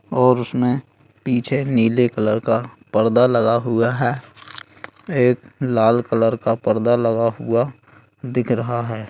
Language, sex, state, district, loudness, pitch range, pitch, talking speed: Hindi, male, Bihar, Bhagalpur, -19 LUFS, 115-125 Hz, 120 Hz, 130 wpm